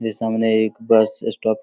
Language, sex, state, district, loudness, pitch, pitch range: Hindi, male, Bihar, Begusarai, -19 LUFS, 110 Hz, 110-115 Hz